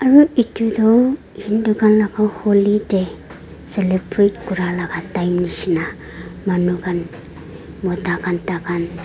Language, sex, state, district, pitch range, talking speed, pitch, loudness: Nagamese, female, Nagaland, Dimapur, 180-215 Hz, 135 wpm, 190 Hz, -18 LUFS